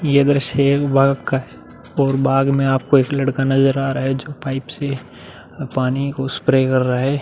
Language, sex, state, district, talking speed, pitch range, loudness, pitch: Hindi, male, Uttar Pradesh, Muzaffarnagar, 205 wpm, 135-140 Hz, -18 LUFS, 135 Hz